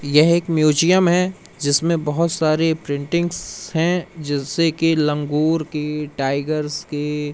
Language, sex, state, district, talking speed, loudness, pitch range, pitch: Hindi, male, Madhya Pradesh, Umaria, 120 wpm, -19 LUFS, 150-165 Hz, 155 Hz